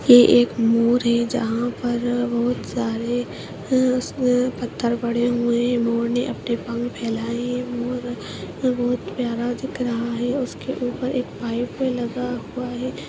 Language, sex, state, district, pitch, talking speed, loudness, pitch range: Hindi, female, Uttarakhand, Tehri Garhwal, 245 Hz, 150 wpm, -22 LUFS, 235-250 Hz